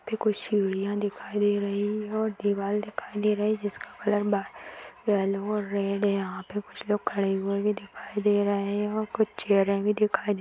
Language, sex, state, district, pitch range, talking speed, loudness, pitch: Hindi, female, Chhattisgarh, Kabirdham, 200-210 Hz, 215 wpm, -28 LUFS, 205 Hz